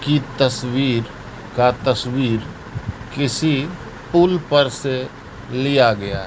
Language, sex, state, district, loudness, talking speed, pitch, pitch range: Hindi, male, Bihar, Katihar, -19 LUFS, 95 wpm, 130 Hz, 115-140 Hz